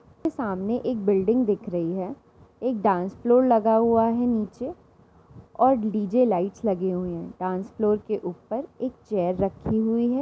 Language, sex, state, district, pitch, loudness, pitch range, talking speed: Hindi, female, Uttar Pradesh, Jyotiba Phule Nagar, 215 Hz, -24 LUFS, 190-240 Hz, 165 wpm